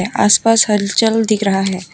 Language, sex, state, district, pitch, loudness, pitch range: Hindi, female, Tripura, West Tripura, 205 Hz, -13 LUFS, 195-225 Hz